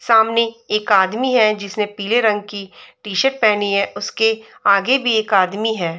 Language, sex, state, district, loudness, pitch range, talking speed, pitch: Hindi, female, Uttar Pradesh, Budaun, -17 LUFS, 200-225 Hz, 170 wpm, 215 Hz